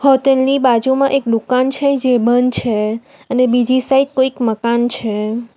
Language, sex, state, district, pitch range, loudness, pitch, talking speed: Gujarati, female, Gujarat, Valsad, 235-270 Hz, -15 LUFS, 250 Hz, 160 wpm